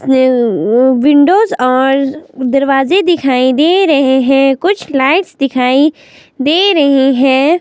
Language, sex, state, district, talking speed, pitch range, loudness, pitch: Hindi, female, Himachal Pradesh, Shimla, 100 wpm, 265-310 Hz, -10 LUFS, 275 Hz